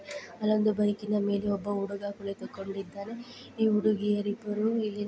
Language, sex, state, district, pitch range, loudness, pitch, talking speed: Kannada, female, Karnataka, Chamarajanagar, 200-215 Hz, -30 LUFS, 210 Hz, 105 wpm